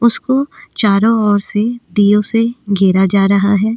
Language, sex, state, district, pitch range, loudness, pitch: Hindi, female, Uttarakhand, Tehri Garhwal, 200-235 Hz, -13 LUFS, 210 Hz